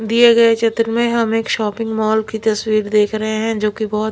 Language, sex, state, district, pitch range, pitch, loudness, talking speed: Hindi, female, Bihar, Patna, 215-230 Hz, 220 Hz, -16 LUFS, 235 wpm